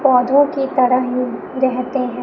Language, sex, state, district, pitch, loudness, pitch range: Hindi, male, Chhattisgarh, Raipur, 255 Hz, -17 LUFS, 250-270 Hz